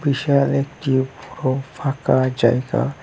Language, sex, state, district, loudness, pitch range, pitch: Bengali, male, West Bengal, Cooch Behar, -20 LUFS, 130-140 Hz, 135 Hz